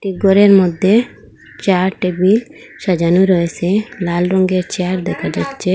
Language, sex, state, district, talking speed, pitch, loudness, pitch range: Bengali, female, Assam, Hailakandi, 115 wpm, 185 Hz, -15 LUFS, 180-195 Hz